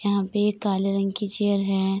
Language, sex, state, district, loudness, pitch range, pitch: Hindi, female, Bihar, Darbhanga, -24 LUFS, 195-205 Hz, 200 Hz